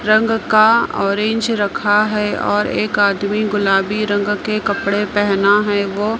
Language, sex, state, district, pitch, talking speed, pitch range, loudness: Hindi, female, Maharashtra, Mumbai Suburban, 210 Hz, 145 wpm, 200-215 Hz, -16 LUFS